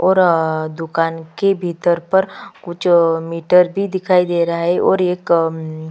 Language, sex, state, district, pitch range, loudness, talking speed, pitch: Hindi, female, Chhattisgarh, Kabirdham, 165-180 Hz, -16 LUFS, 160 wpm, 170 Hz